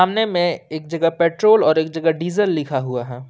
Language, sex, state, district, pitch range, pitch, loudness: Hindi, male, Jharkhand, Ranchi, 155-180 Hz, 165 Hz, -18 LUFS